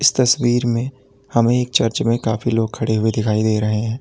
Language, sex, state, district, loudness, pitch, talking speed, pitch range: Hindi, male, Uttar Pradesh, Lalitpur, -18 LUFS, 115 Hz, 210 wpm, 110-125 Hz